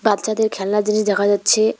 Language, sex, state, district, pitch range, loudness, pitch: Bengali, female, West Bengal, Cooch Behar, 205-220 Hz, -18 LUFS, 210 Hz